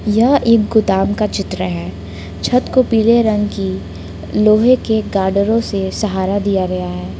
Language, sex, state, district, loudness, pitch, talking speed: Hindi, female, Jharkhand, Palamu, -15 LUFS, 200 Hz, 165 wpm